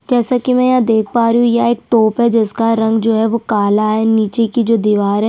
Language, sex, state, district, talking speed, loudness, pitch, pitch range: Hindi, female, Chhattisgarh, Sukma, 275 wpm, -13 LUFS, 225 Hz, 220-235 Hz